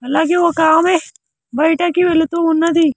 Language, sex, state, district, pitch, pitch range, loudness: Telugu, male, Andhra Pradesh, Sri Satya Sai, 325 Hz, 315-340 Hz, -14 LUFS